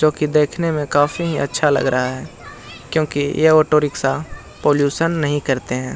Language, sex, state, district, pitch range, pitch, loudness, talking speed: Hindi, male, Bihar, Jahanabad, 135-155 Hz, 145 Hz, -18 LUFS, 180 wpm